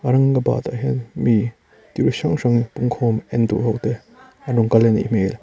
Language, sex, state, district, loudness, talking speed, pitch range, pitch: Mizo, male, Mizoram, Aizawl, -19 LUFS, 200 wpm, 110-125 Hz, 115 Hz